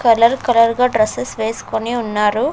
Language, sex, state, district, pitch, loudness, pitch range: Telugu, female, Andhra Pradesh, Sri Satya Sai, 230 Hz, -16 LUFS, 215-240 Hz